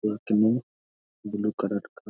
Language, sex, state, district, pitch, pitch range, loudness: Hindi, male, Bihar, Darbhanga, 105 Hz, 85-105 Hz, -27 LUFS